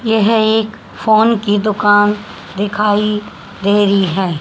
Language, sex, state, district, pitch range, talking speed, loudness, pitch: Hindi, female, Haryana, Charkhi Dadri, 205-220 Hz, 120 wpm, -14 LUFS, 210 Hz